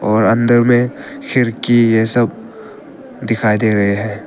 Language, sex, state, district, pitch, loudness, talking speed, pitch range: Hindi, male, Arunachal Pradesh, Papum Pare, 115 Hz, -14 LUFS, 140 wpm, 110-120 Hz